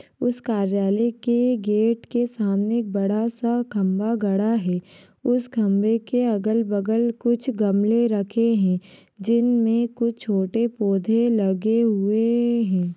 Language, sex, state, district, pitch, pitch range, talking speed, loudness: Kumaoni, female, Uttarakhand, Tehri Garhwal, 225 Hz, 200-235 Hz, 135 wpm, -22 LUFS